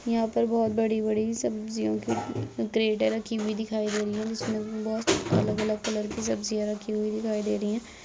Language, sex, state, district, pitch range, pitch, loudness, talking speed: Hindi, female, Uttar Pradesh, Muzaffarnagar, 210-225 Hz, 215 Hz, -28 LUFS, 185 wpm